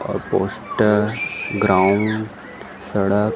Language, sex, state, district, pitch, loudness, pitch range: Chhattisgarhi, male, Chhattisgarh, Rajnandgaon, 105 Hz, -19 LUFS, 100-110 Hz